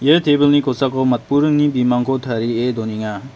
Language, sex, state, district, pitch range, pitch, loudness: Garo, male, Meghalaya, West Garo Hills, 120-145 Hz, 130 Hz, -17 LUFS